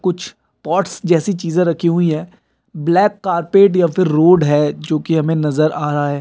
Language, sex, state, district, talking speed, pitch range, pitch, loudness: Hindi, male, Bihar, Kishanganj, 185 wpm, 155-180 Hz, 170 Hz, -15 LUFS